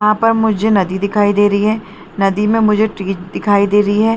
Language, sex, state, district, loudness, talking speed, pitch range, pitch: Hindi, female, Chhattisgarh, Bilaspur, -14 LUFS, 230 wpm, 200-215 Hz, 205 Hz